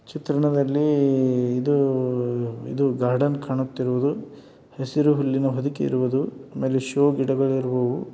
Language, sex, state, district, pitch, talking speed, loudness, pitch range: Kannada, male, Karnataka, Dharwad, 135 Hz, 105 wpm, -23 LUFS, 125-140 Hz